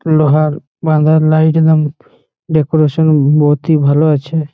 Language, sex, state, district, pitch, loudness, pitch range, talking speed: Bengali, male, West Bengal, Malda, 155 Hz, -12 LUFS, 150-160 Hz, 105 wpm